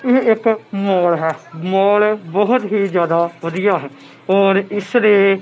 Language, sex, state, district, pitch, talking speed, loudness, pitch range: Punjabi, male, Punjab, Kapurthala, 195 Hz, 145 wpm, -16 LUFS, 175-210 Hz